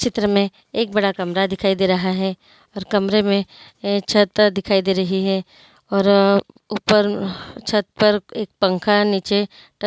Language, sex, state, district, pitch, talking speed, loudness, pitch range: Hindi, female, Andhra Pradesh, Chittoor, 200 Hz, 150 wpm, -19 LUFS, 195-210 Hz